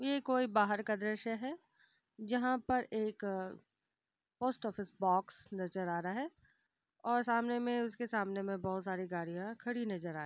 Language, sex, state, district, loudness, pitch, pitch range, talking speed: Hindi, female, Bihar, Gopalganj, -37 LUFS, 215 Hz, 190-245 Hz, 175 wpm